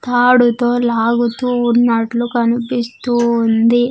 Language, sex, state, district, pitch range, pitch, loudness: Telugu, female, Andhra Pradesh, Sri Satya Sai, 235-245 Hz, 240 Hz, -15 LUFS